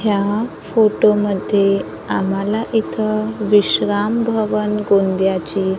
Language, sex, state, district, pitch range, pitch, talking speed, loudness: Marathi, female, Maharashtra, Gondia, 195-215 Hz, 210 Hz, 85 wpm, -17 LUFS